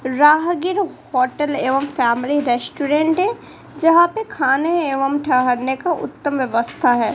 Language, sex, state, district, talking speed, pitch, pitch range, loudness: Hindi, female, Bihar, Kaimur, 125 wpm, 285 Hz, 255-330 Hz, -18 LUFS